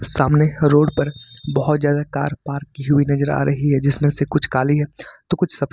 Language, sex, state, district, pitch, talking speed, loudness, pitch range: Hindi, male, Jharkhand, Ranchi, 145 Hz, 220 wpm, -18 LUFS, 140-150 Hz